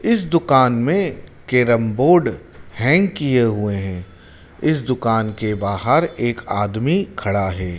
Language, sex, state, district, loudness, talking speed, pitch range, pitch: Hindi, male, Madhya Pradesh, Dhar, -18 LUFS, 130 wpm, 100-140 Hz, 120 Hz